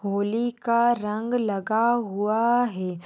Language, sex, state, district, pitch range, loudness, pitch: Hindi, female, Jharkhand, Sahebganj, 205-240 Hz, -24 LUFS, 220 Hz